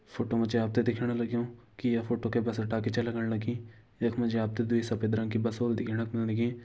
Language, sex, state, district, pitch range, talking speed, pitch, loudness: Garhwali, male, Uttarakhand, Uttarkashi, 115-120 Hz, 245 wpm, 115 Hz, -31 LUFS